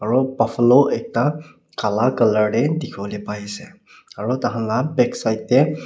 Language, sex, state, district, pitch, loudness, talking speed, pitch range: Nagamese, male, Nagaland, Kohima, 120 Hz, -19 LUFS, 155 wpm, 110-135 Hz